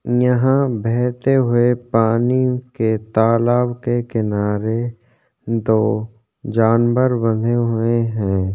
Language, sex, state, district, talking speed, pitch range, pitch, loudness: Hindi, male, Chhattisgarh, Korba, 100 wpm, 110-125 Hz, 115 Hz, -18 LUFS